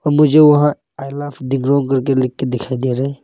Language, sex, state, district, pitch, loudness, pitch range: Hindi, male, Arunachal Pradesh, Longding, 135 Hz, -15 LUFS, 130-145 Hz